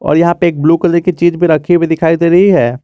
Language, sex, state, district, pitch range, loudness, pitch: Hindi, male, Jharkhand, Garhwa, 160-175 Hz, -10 LUFS, 170 Hz